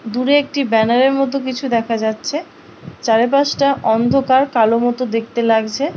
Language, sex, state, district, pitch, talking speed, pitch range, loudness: Bengali, female, West Bengal, Paschim Medinipur, 250 Hz, 130 wpm, 225-275 Hz, -16 LUFS